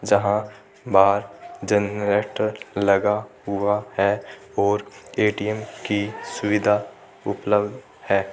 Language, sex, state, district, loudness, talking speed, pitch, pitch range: Hindi, male, Rajasthan, Churu, -23 LUFS, 85 wpm, 105 Hz, 100-105 Hz